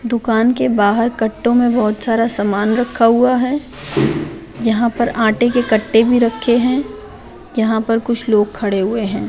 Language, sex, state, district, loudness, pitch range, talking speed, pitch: Hindi, female, Bihar, Jahanabad, -15 LUFS, 220-245 Hz, 170 wpm, 230 Hz